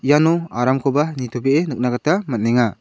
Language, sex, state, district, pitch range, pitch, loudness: Garo, male, Meghalaya, South Garo Hills, 125-150 Hz, 135 Hz, -19 LUFS